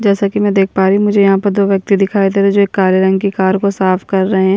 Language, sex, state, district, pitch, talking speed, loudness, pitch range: Hindi, female, Bihar, Kishanganj, 195 Hz, 340 wpm, -12 LUFS, 190-200 Hz